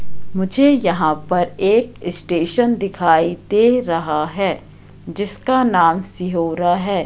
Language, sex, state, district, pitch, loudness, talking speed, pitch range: Hindi, female, Madhya Pradesh, Katni, 180 Hz, -17 LUFS, 110 wpm, 165-205 Hz